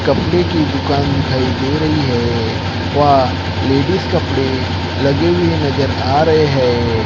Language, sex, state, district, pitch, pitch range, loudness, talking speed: Hindi, male, Maharashtra, Gondia, 110 Hz, 90-125 Hz, -15 LUFS, 135 wpm